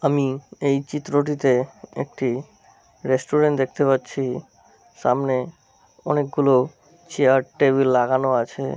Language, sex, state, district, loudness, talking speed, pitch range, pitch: Bengali, male, West Bengal, Malda, -21 LUFS, 105 wpm, 130-145 Hz, 135 Hz